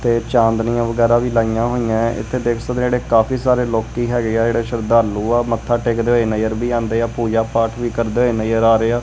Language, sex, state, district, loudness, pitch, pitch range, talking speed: Punjabi, male, Punjab, Kapurthala, -17 LUFS, 115 Hz, 115-120 Hz, 240 wpm